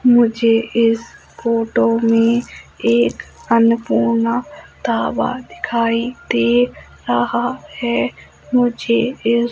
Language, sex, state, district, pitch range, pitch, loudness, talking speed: Hindi, female, Madhya Pradesh, Umaria, 225-235 Hz, 230 Hz, -17 LUFS, 80 wpm